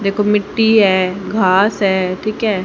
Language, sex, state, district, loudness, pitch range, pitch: Hindi, female, Haryana, Charkhi Dadri, -14 LUFS, 190-215 Hz, 200 Hz